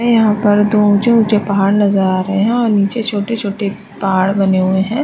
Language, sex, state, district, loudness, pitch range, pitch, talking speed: Hindi, female, Uttarakhand, Uttarkashi, -14 LUFS, 195-220 Hz, 205 Hz, 200 wpm